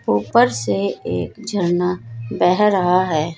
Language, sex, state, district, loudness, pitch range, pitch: Hindi, female, Uttar Pradesh, Saharanpur, -18 LUFS, 115-180 Hz, 170 Hz